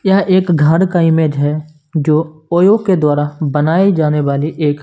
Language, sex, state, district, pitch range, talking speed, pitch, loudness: Hindi, male, Punjab, Kapurthala, 150-180 Hz, 175 wpm, 155 Hz, -13 LUFS